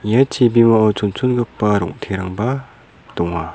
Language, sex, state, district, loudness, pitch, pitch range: Garo, male, Meghalaya, South Garo Hills, -17 LUFS, 110 Hz, 100-120 Hz